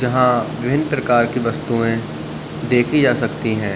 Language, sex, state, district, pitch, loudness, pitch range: Hindi, male, Uttar Pradesh, Budaun, 120 Hz, -18 LUFS, 115-125 Hz